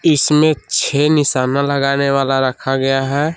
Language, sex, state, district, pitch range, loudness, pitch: Hindi, male, Jharkhand, Palamu, 135-150 Hz, -15 LUFS, 140 Hz